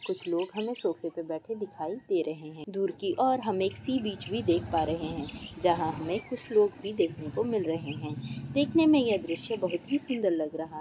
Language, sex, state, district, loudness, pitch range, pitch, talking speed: Hindi, female, Goa, North and South Goa, -30 LUFS, 160-230 Hz, 185 Hz, 240 wpm